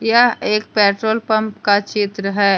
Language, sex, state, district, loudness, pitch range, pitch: Hindi, female, Jharkhand, Deoghar, -17 LUFS, 200-220 Hz, 210 Hz